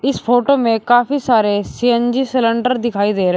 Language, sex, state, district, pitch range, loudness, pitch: Hindi, male, Uttar Pradesh, Shamli, 225-255 Hz, -15 LUFS, 240 Hz